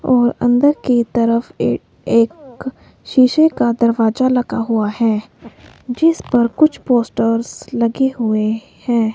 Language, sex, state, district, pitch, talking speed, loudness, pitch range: Hindi, male, Himachal Pradesh, Shimla, 240 Hz, 125 wpm, -16 LUFS, 230-260 Hz